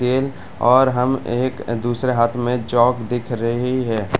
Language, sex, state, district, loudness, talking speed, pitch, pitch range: Hindi, male, Bihar, Madhepura, -19 LUFS, 170 wpm, 120 Hz, 115-130 Hz